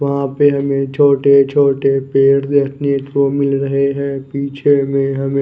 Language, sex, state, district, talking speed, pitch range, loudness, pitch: Hindi, male, Odisha, Khordha, 155 wpm, 135-140 Hz, -15 LUFS, 140 Hz